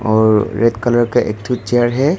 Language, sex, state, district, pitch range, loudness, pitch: Hindi, male, Arunachal Pradesh, Longding, 110-120 Hz, -15 LUFS, 120 Hz